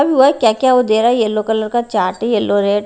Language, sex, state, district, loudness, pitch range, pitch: Hindi, female, Haryana, Rohtak, -14 LUFS, 215-250 Hz, 230 Hz